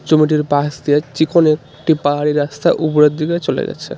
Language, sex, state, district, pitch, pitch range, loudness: Bengali, male, West Bengal, Darjeeling, 150 Hz, 145-155 Hz, -15 LUFS